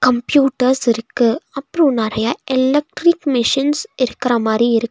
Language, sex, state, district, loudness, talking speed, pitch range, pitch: Tamil, female, Tamil Nadu, Nilgiris, -16 LUFS, 110 wpm, 235-290 Hz, 255 Hz